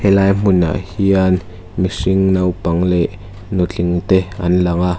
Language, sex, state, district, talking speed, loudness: Mizo, female, Mizoram, Aizawl, 130 wpm, -16 LUFS